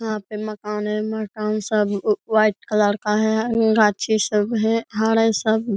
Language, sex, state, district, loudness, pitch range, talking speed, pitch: Hindi, female, Bihar, Araria, -20 LUFS, 210-220 Hz, 165 wpm, 215 Hz